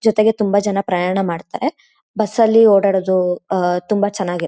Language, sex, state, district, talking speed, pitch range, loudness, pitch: Kannada, female, Karnataka, Shimoga, 145 wpm, 180-215 Hz, -16 LUFS, 200 Hz